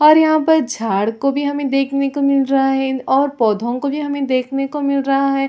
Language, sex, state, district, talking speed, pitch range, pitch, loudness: Hindi, female, Chhattisgarh, Raigarh, 240 wpm, 265-285 Hz, 275 Hz, -17 LUFS